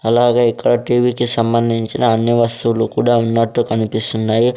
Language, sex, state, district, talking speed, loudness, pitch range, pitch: Telugu, male, Andhra Pradesh, Sri Satya Sai, 130 wpm, -15 LUFS, 115-120 Hz, 115 Hz